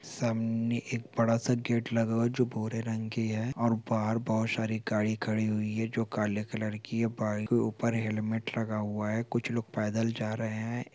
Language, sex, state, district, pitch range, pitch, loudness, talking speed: Hindi, male, Chhattisgarh, Sukma, 110-115 Hz, 115 Hz, -31 LUFS, 220 wpm